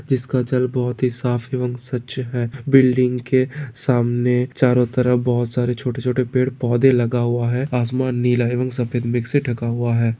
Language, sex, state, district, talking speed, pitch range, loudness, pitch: Hindi, male, Maharashtra, Pune, 170 wpm, 120-130 Hz, -19 LUFS, 125 Hz